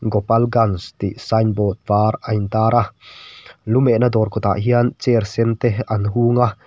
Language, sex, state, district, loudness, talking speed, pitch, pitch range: Mizo, male, Mizoram, Aizawl, -18 LUFS, 170 wpm, 110 Hz, 105-120 Hz